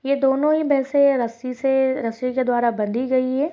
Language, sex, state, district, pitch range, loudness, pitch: Hindi, female, Chhattisgarh, Sarguja, 250-275 Hz, -20 LUFS, 260 Hz